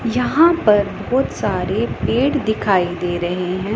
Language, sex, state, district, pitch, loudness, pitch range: Hindi, female, Punjab, Pathankot, 215 Hz, -18 LUFS, 180-255 Hz